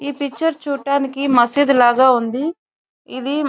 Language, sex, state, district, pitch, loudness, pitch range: Telugu, female, Andhra Pradesh, Chittoor, 280 Hz, -17 LUFS, 255-285 Hz